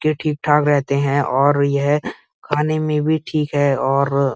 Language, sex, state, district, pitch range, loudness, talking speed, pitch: Hindi, male, Uttar Pradesh, Muzaffarnagar, 140-150 Hz, -18 LUFS, 165 wpm, 145 Hz